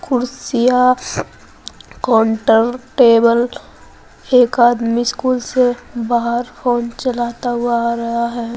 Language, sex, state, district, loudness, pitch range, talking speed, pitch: Hindi, female, Uttar Pradesh, Saharanpur, -16 LUFS, 235-250 Hz, 100 wpm, 240 Hz